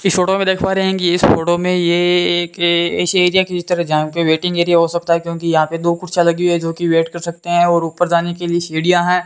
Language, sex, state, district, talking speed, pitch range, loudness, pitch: Hindi, female, Rajasthan, Bikaner, 290 wpm, 170-180 Hz, -15 LUFS, 175 Hz